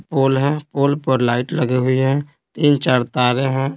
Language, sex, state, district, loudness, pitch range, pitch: Hindi, male, Bihar, Patna, -18 LUFS, 125-145 Hz, 135 Hz